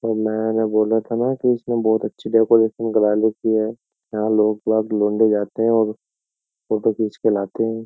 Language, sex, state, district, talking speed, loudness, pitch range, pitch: Hindi, male, Uttar Pradesh, Jyotiba Phule Nagar, 185 wpm, -19 LUFS, 110-115 Hz, 110 Hz